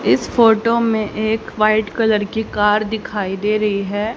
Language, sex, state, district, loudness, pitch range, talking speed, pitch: Hindi, female, Haryana, Jhajjar, -17 LUFS, 210-220 Hz, 175 wpm, 215 Hz